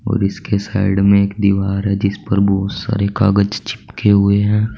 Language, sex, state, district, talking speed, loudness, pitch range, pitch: Hindi, male, Uttar Pradesh, Saharanpur, 190 wpm, -16 LUFS, 100-105 Hz, 100 Hz